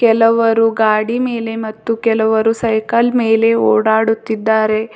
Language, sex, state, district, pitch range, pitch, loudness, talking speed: Kannada, female, Karnataka, Bidar, 220-230 Hz, 225 Hz, -14 LUFS, 95 wpm